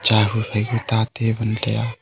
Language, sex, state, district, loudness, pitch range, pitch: Wancho, male, Arunachal Pradesh, Longding, -21 LUFS, 110-115 Hz, 110 Hz